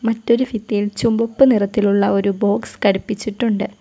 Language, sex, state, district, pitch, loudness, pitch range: Malayalam, female, Kerala, Kollam, 215 Hz, -18 LUFS, 205-230 Hz